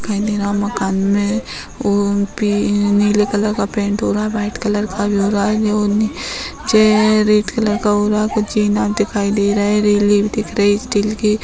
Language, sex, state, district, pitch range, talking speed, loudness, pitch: Hindi, female, Bihar, Madhepura, 205-210 Hz, 225 wpm, -16 LUFS, 210 Hz